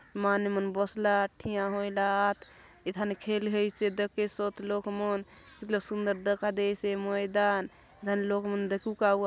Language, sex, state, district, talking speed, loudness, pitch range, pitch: Halbi, female, Chhattisgarh, Bastar, 160 wpm, -31 LUFS, 200-205 Hz, 205 Hz